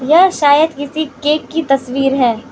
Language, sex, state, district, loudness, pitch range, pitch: Hindi, female, Manipur, Imphal West, -14 LUFS, 270-315 Hz, 285 Hz